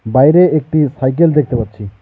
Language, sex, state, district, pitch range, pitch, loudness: Bengali, male, West Bengal, Alipurduar, 115-155 Hz, 140 Hz, -12 LUFS